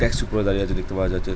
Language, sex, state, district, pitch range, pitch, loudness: Bengali, male, West Bengal, Jhargram, 95-105 Hz, 95 Hz, -24 LUFS